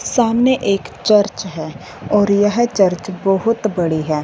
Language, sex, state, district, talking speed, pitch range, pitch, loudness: Hindi, female, Punjab, Fazilka, 140 wpm, 180-215 Hz, 200 Hz, -16 LUFS